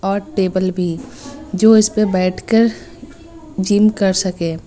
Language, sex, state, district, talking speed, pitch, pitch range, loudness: Hindi, female, Uttar Pradesh, Lucknow, 130 wpm, 200 Hz, 185-220 Hz, -15 LUFS